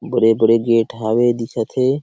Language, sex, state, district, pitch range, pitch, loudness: Chhattisgarhi, male, Chhattisgarh, Sarguja, 115-120 Hz, 115 Hz, -17 LUFS